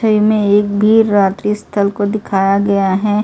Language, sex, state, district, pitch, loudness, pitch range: Hindi, female, Delhi, New Delhi, 205 Hz, -13 LUFS, 200-210 Hz